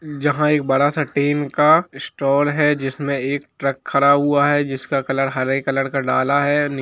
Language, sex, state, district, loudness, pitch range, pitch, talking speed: Hindi, male, Jharkhand, Jamtara, -18 LUFS, 135-145 Hz, 140 Hz, 185 wpm